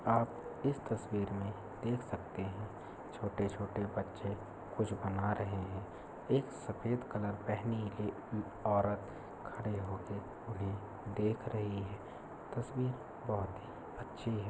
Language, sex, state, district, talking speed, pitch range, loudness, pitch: Hindi, male, Andhra Pradesh, Krishna, 125 wpm, 100-115 Hz, -39 LUFS, 105 Hz